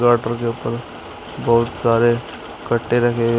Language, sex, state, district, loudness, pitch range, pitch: Hindi, male, Uttar Pradesh, Shamli, -19 LUFS, 115-120 Hz, 120 Hz